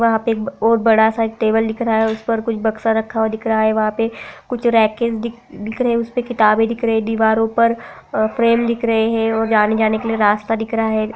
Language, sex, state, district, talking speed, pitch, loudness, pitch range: Hindi, female, Bihar, Darbhanga, 240 wpm, 225 Hz, -17 LUFS, 220-230 Hz